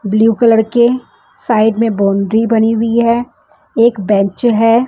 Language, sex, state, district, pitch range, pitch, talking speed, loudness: Hindi, female, Bihar, West Champaran, 215-235 Hz, 225 Hz, 145 wpm, -12 LUFS